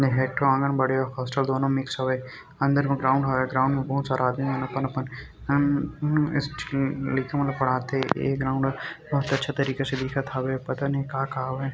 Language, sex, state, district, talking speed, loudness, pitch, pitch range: Chhattisgarhi, male, Chhattisgarh, Rajnandgaon, 205 wpm, -26 LUFS, 135 Hz, 130-140 Hz